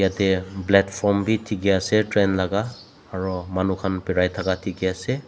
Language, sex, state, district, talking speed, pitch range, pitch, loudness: Nagamese, male, Nagaland, Dimapur, 160 wpm, 95-105 Hz, 95 Hz, -22 LUFS